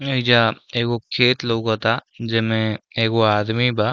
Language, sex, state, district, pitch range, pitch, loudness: Bhojpuri, male, Uttar Pradesh, Deoria, 110-120 Hz, 115 Hz, -19 LUFS